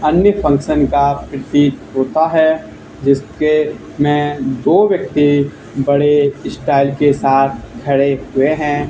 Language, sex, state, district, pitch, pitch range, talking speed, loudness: Hindi, male, Haryana, Charkhi Dadri, 145 Hz, 140-150 Hz, 115 wpm, -14 LUFS